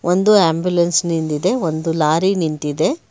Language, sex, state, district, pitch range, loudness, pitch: Kannada, male, Karnataka, Bangalore, 160-185 Hz, -17 LUFS, 170 Hz